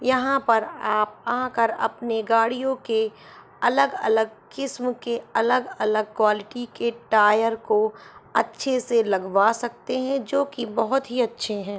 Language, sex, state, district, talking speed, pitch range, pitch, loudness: Hindi, female, Uttar Pradesh, Ghazipur, 125 wpm, 220-255 Hz, 230 Hz, -23 LUFS